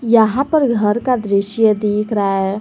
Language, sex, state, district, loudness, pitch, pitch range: Hindi, female, Jharkhand, Garhwa, -16 LUFS, 215 Hz, 205-235 Hz